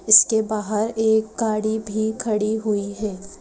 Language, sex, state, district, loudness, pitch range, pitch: Hindi, female, Madhya Pradesh, Bhopal, -21 LUFS, 210-220 Hz, 215 Hz